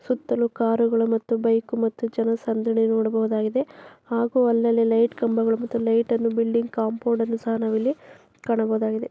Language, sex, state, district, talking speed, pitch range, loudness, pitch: Kannada, female, Karnataka, Dharwad, 110 wpm, 225-235 Hz, -23 LUFS, 230 Hz